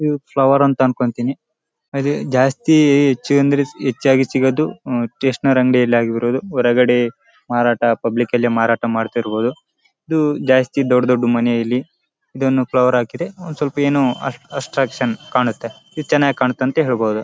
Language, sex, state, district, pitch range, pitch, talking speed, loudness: Kannada, male, Karnataka, Raichur, 120-140 Hz, 130 Hz, 110 wpm, -17 LUFS